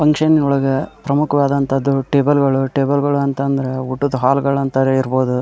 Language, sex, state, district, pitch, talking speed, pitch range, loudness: Kannada, male, Karnataka, Dharwad, 140 Hz, 155 wpm, 135-140 Hz, -16 LUFS